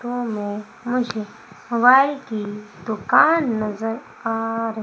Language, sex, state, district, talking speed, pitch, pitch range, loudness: Hindi, female, Madhya Pradesh, Umaria, 110 wpm, 225 Hz, 215-245 Hz, -21 LUFS